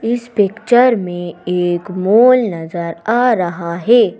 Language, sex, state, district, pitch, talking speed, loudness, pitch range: Hindi, female, Madhya Pradesh, Bhopal, 200 Hz, 130 wpm, -15 LUFS, 175-235 Hz